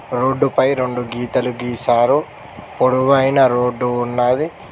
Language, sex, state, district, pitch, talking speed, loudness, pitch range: Telugu, male, Telangana, Mahabubabad, 125 Hz, 90 wpm, -17 LUFS, 120-130 Hz